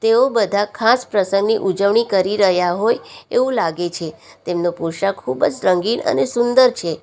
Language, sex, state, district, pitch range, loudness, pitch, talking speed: Gujarati, female, Gujarat, Valsad, 175-230 Hz, -17 LUFS, 200 Hz, 160 wpm